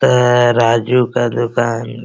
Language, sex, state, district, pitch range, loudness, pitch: Hindi, male, Bihar, Araria, 115-125 Hz, -14 LUFS, 120 Hz